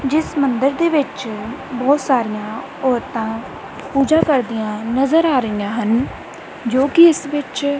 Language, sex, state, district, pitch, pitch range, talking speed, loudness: Punjabi, female, Punjab, Kapurthala, 270 Hz, 230-290 Hz, 125 wpm, -18 LUFS